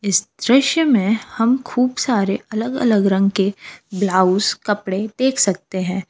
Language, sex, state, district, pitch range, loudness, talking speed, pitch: Hindi, female, Jharkhand, Palamu, 195-250 Hz, -18 LUFS, 145 wpm, 210 Hz